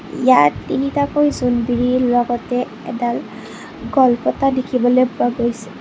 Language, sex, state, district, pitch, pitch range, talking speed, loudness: Assamese, female, Assam, Kamrup Metropolitan, 245 Hz, 240-260 Hz, 95 wpm, -17 LUFS